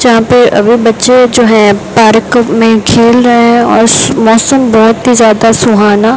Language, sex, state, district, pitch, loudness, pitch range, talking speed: Hindi, female, Rajasthan, Bikaner, 230 Hz, -6 LUFS, 220-240 Hz, 175 wpm